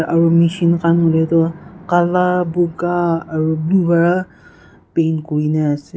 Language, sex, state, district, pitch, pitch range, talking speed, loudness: Nagamese, female, Nagaland, Kohima, 170 Hz, 160-175 Hz, 140 wpm, -16 LUFS